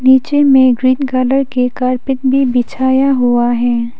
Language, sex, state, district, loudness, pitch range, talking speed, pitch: Hindi, female, Arunachal Pradesh, Papum Pare, -13 LUFS, 250-270 Hz, 150 wpm, 260 Hz